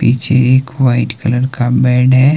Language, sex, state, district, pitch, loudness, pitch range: Hindi, male, Himachal Pradesh, Shimla, 125 Hz, -12 LUFS, 120-130 Hz